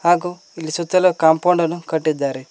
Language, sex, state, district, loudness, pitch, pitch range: Kannada, male, Karnataka, Koppal, -18 LUFS, 170 Hz, 160-175 Hz